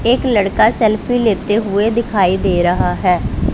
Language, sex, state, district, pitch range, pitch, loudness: Hindi, female, Punjab, Pathankot, 200-235 Hz, 215 Hz, -15 LUFS